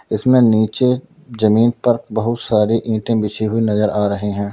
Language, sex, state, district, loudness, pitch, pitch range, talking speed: Hindi, male, Uttar Pradesh, Lalitpur, -16 LUFS, 110 Hz, 105-120 Hz, 170 wpm